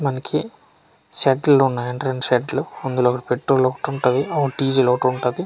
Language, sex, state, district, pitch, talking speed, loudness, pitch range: Telugu, male, Andhra Pradesh, Manyam, 130 Hz, 120 wpm, -20 LUFS, 125-135 Hz